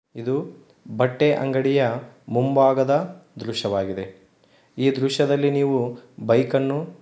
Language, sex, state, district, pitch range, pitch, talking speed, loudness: Kannada, male, Karnataka, Dharwad, 120-140 Hz, 135 Hz, 105 wpm, -22 LUFS